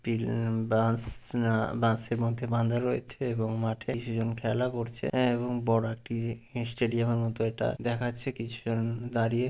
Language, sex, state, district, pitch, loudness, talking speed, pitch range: Bengali, male, West Bengal, Purulia, 115 Hz, -30 LUFS, 160 wpm, 115-120 Hz